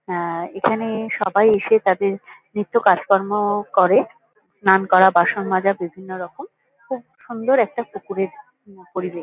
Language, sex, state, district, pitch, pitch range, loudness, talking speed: Bengali, female, West Bengal, Kolkata, 200 Hz, 185-220 Hz, -19 LUFS, 125 wpm